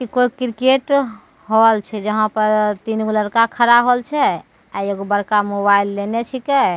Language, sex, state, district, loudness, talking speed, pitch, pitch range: Maithili, female, Bihar, Begusarai, -17 LUFS, 150 wpm, 220 Hz, 210-250 Hz